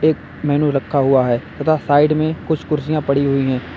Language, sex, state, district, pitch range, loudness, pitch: Hindi, male, Uttar Pradesh, Lalitpur, 135-155 Hz, -17 LUFS, 145 Hz